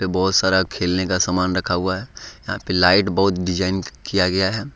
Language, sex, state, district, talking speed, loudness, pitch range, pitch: Hindi, male, Jharkhand, Ranchi, 200 wpm, -19 LUFS, 90-95 Hz, 95 Hz